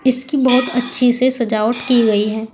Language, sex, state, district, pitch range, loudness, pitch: Hindi, female, Uttar Pradesh, Saharanpur, 225-255 Hz, -15 LUFS, 245 Hz